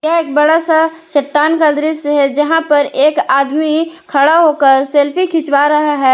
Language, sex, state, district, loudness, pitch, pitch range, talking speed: Hindi, female, Jharkhand, Palamu, -12 LUFS, 300 Hz, 285-320 Hz, 165 wpm